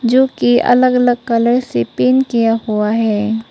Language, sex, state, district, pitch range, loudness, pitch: Hindi, female, Arunachal Pradesh, Papum Pare, 225-250 Hz, -14 LUFS, 235 Hz